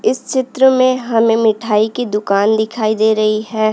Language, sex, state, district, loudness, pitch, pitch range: Hindi, female, Uttarakhand, Uttarkashi, -14 LUFS, 220 Hz, 215-245 Hz